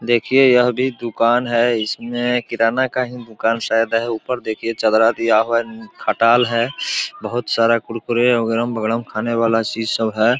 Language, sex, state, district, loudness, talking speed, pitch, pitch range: Hindi, male, Bihar, Supaul, -18 LUFS, 165 wpm, 115 Hz, 115-120 Hz